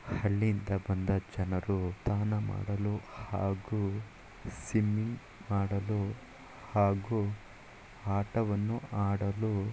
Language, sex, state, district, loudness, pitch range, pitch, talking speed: Kannada, male, Karnataka, Mysore, -33 LUFS, 100-110 Hz, 105 Hz, 70 wpm